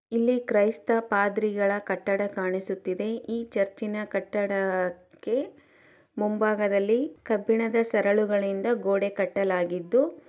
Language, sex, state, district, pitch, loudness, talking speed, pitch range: Kannada, female, Karnataka, Chamarajanagar, 205 Hz, -26 LUFS, 75 wpm, 195-225 Hz